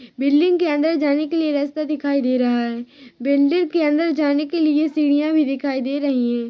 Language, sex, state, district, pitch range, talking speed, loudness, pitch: Hindi, female, Chhattisgarh, Rajnandgaon, 270-310 Hz, 210 wpm, -19 LUFS, 290 Hz